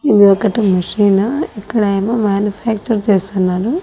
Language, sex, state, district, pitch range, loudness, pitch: Telugu, female, Andhra Pradesh, Annamaya, 195-220 Hz, -15 LUFS, 205 Hz